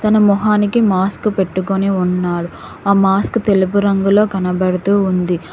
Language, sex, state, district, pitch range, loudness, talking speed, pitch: Telugu, female, Telangana, Hyderabad, 185-200 Hz, -15 LUFS, 120 wpm, 195 Hz